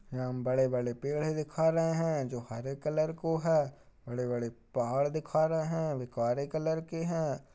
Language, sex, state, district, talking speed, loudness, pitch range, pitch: Hindi, male, Uttar Pradesh, Jalaun, 175 wpm, -32 LUFS, 125-160 Hz, 150 Hz